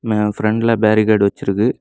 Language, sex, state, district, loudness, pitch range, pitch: Tamil, male, Tamil Nadu, Kanyakumari, -16 LUFS, 105-110 Hz, 110 Hz